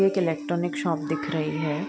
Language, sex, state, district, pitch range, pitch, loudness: Hindi, female, Andhra Pradesh, Guntur, 150-175 Hz, 155 Hz, -27 LUFS